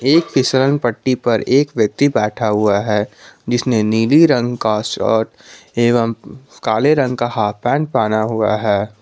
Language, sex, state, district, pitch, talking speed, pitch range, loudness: Hindi, male, Jharkhand, Garhwa, 120 Hz, 155 wpm, 105-130 Hz, -16 LUFS